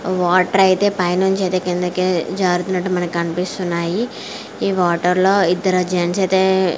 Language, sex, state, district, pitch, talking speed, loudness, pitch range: Telugu, male, Andhra Pradesh, Chittoor, 185 Hz, 125 wpm, -17 LUFS, 175-190 Hz